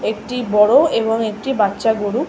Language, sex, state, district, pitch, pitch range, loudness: Bengali, female, West Bengal, Malda, 225 Hz, 210-245 Hz, -16 LUFS